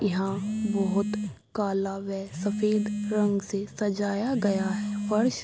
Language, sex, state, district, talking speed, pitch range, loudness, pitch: Hindi, female, Bihar, Supaul, 120 wpm, 195-210 Hz, -28 LUFS, 205 Hz